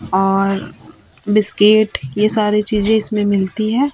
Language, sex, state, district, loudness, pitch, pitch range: Hindi, female, Chhattisgarh, Raipur, -15 LUFS, 210 Hz, 195-215 Hz